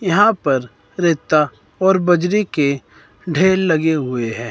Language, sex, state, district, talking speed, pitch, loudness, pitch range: Hindi, male, Himachal Pradesh, Shimla, 135 wpm, 160 Hz, -17 LUFS, 135-185 Hz